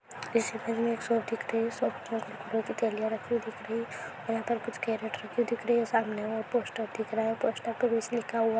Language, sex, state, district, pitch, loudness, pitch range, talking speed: Hindi, female, Bihar, Purnia, 230 Hz, -31 LUFS, 225-235 Hz, 225 wpm